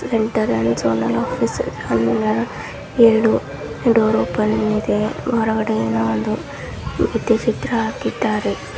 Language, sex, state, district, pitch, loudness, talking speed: Kannada, male, Karnataka, Dharwad, 215 Hz, -19 LUFS, 100 wpm